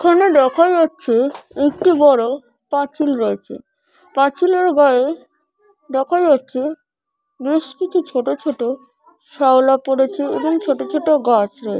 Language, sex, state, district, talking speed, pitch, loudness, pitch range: Bengali, female, West Bengal, Purulia, 115 wpm, 290 Hz, -16 LUFS, 265-330 Hz